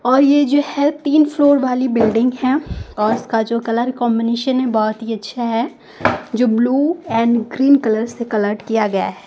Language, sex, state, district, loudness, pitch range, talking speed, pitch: Hindi, female, Maharashtra, Gondia, -17 LUFS, 225-275 Hz, 190 wpm, 240 Hz